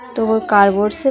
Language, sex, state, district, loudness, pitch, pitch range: Hindi, female, Bihar, Muzaffarpur, -15 LUFS, 220 Hz, 205-250 Hz